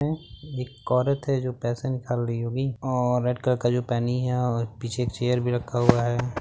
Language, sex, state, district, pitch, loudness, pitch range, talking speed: Bhojpuri, male, Uttar Pradesh, Gorakhpur, 125 Hz, -26 LUFS, 120-125 Hz, 225 wpm